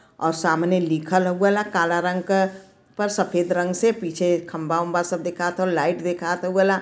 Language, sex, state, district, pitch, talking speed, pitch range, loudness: Bhojpuri, female, Uttar Pradesh, Varanasi, 180 Hz, 175 wpm, 170-190 Hz, -22 LUFS